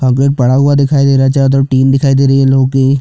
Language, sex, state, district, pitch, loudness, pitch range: Hindi, male, Chhattisgarh, Jashpur, 135 Hz, -10 LUFS, 135-140 Hz